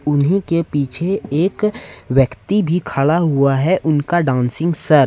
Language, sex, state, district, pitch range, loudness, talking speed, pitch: Hindi, male, Jharkhand, Ranchi, 140-175 Hz, -17 LUFS, 155 wpm, 155 Hz